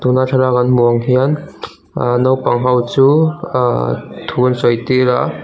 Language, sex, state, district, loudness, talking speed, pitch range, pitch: Mizo, male, Mizoram, Aizawl, -14 LUFS, 175 wpm, 120-130 Hz, 125 Hz